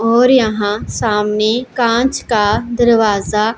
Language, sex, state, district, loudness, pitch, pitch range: Hindi, female, Punjab, Pathankot, -14 LUFS, 225 Hz, 210-240 Hz